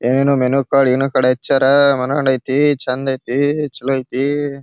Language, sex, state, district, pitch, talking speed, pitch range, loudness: Kannada, male, Karnataka, Bijapur, 135 Hz, 130 wpm, 130-140 Hz, -16 LUFS